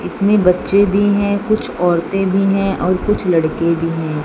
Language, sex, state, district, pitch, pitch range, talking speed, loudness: Hindi, female, Punjab, Fazilka, 195 Hz, 170-200 Hz, 185 wpm, -15 LUFS